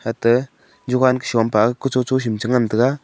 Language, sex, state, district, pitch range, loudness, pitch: Wancho, male, Arunachal Pradesh, Longding, 115-130 Hz, -18 LUFS, 125 Hz